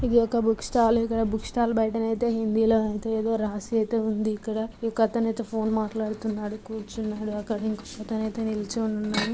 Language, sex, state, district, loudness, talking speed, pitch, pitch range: Telugu, female, Andhra Pradesh, Guntur, -26 LUFS, 200 wpm, 220 Hz, 215-225 Hz